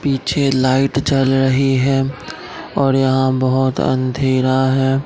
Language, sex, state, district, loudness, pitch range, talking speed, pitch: Hindi, male, Bihar, Katihar, -16 LUFS, 130-135 Hz, 120 wpm, 135 Hz